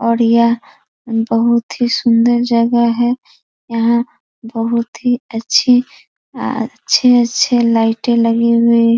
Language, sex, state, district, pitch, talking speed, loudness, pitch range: Hindi, female, Bihar, East Champaran, 235 Hz, 115 wpm, -14 LUFS, 230-240 Hz